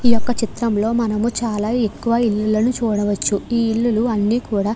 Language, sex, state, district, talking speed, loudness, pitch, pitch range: Telugu, female, Andhra Pradesh, Krishna, 190 wpm, -19 LUFS, 225 Hz, 210-235 Hz